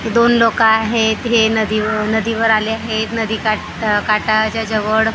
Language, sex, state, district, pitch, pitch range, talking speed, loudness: Marathi, female, Maharashtra, Gondia, 220 Hz, 215-225 Hz, 175 wpm, -15 LUFS